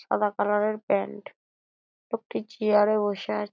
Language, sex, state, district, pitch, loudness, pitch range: Bengali, female, West Bengal, Dakshin Dinajpur, 210 Hz, -26 LUFS, 200-215 Hz